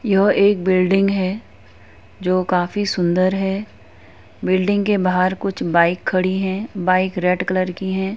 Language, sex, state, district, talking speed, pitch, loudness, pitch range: Hindi, female, Uttar Pradesh, Etah, 155 wpm, 185 Hz, -18 LUFS, 180-195 Hz